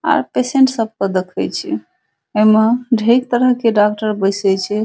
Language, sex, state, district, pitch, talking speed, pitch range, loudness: Maithili, female, Bihar, Saharsa, 220 Hz, 160 wpm, 210-250 Hz, -15 LUFS